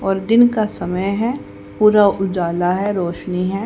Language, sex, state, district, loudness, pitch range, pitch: Hindi, female, Haryana, Rohtak, -17 LUFS, 180-210 Hz, 195 Hz